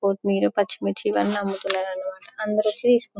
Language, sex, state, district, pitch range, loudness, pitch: Telugu, female, Telangana, Karimnagar, 190-210 Hz, -24 LUFS, 195 Hz